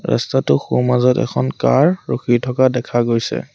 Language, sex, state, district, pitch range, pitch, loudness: Assamese, male, Assam, Sonitpur, 115-125 Hz, 125 Hz, -17 LUFS